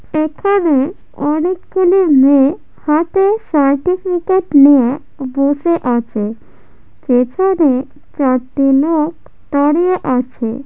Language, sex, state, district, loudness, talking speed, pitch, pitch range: Bengali, female, West Bengal, Jhargram, -14 LUFS, 80 wpm, 290 Hz, 270-350 Hz